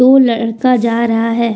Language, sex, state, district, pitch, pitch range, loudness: Hindi, female, Jharkhand, Deoghar, 235 Hz, 230-250 Hz, -13 LUFS